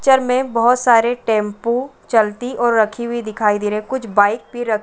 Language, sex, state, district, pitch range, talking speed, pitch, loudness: Hindi, female, Uttar Pradesh, Varanasi, 215-245 Hz, 225 wpm, 235 Hz, -17 LUFS